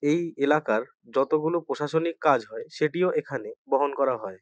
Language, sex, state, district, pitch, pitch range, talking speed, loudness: Bengali, male, West Bengal, North 24 Parganas, 155 Hz, 140-170 Hz, 150 wpm, -26 LUFS